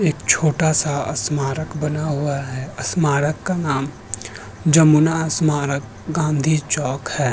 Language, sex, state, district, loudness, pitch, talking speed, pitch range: Hindi, male, Uttar Pradesh, Hamirpur, -19 LUFS, 150 Hz, 125 wpm, 135-155 Hz